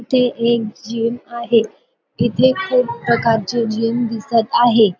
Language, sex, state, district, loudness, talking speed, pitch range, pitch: Marathi, female, Maharashtra, Dhule, -17 LUFS, 120 wpm, 230-245 Hz, 235 Hz